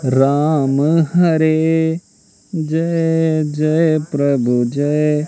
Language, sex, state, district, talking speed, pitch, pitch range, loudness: Hindi, male, Madhya Pradesh, Katni, 70 wpm, 155 Hz, 145-160 Hz, -16 LUFS